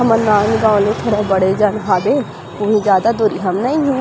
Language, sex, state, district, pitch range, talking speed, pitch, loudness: Chhattisgarhi, female, Chhattisgarh, Rajnandgaon, 195-225 Hz, 210 wpm, 210 Hz, -15 LUFS